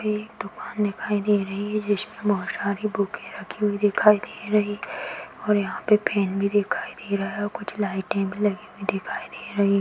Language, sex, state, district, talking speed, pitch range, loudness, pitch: Hindi, female, Chhattisgarh, Rajnandgaon, 215 wpm, 200-210 Hz, -25 LUFS, 205 Hz